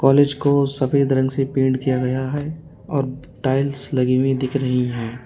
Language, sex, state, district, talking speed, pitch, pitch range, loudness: Hindi, male, Uttar Pradesh, Lalitpur, 180 wpm, 135 Hz, 130-140 Hz, -20 LUFS